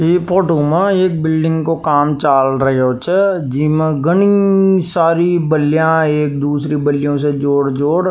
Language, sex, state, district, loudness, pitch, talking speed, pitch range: Rajasthani, male, Rajasthan, Nagaur, -14 LUFS, 155 Hz, 150 wpm, 145-175 Hz